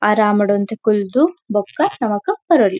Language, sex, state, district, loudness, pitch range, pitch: Tulu, female, Karnataka, Dakshina Kannada, -17 LUFS, 205-275 Hz, 215 Hz